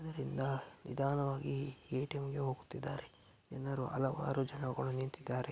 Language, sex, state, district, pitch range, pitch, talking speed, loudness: Kannada, male, Karnataka, Mysore, 130-140 Hz, 135 Hz, 100 wpm, -39 LUFS